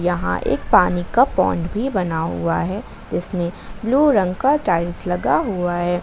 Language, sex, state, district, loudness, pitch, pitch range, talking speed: Hindi, female, Jharkhand, Garhwa, -19 LUFS, 180 Hz, 170-210 Hz, 170 wpm